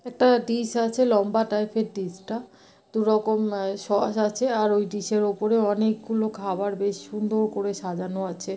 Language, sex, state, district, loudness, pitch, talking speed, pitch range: Bengali, female, West Bengal, North 24 Parganas, -25 LUFS, 215 Hz, 170 wpm, 200-220 Hz